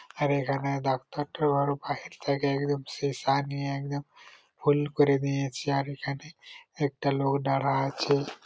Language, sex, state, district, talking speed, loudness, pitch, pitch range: Bengali, male, West Bengal, Purulia, 155 wpm, -28 LUFS, 140 Hz, 140-145 Hz